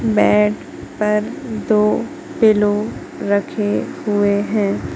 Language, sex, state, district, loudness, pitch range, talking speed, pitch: Hindi, female, Madhya Pradesh, Katni, -18 LUFS, 200-215 Hz, 85 wpm, 210 Hz